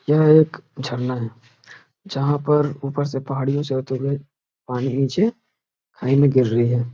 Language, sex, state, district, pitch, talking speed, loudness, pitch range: Hindi, male, Uttar Pradesh, Varanasi, 135 Hz, 165 wpm, -20 LUFS, 125-145 Hz